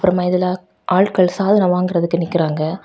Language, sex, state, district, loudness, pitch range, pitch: Tamil, female, Tamil Nadu, Kanyakumari, -17 LUFS, 170-185 Hz, 180 Hz